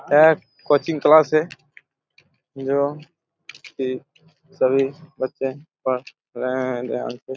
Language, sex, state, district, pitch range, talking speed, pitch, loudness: Hindi, male, Chhattisgarh, Raigarh, 130-155 Hz, 105 wpm, 145 Hz, -21 LUFS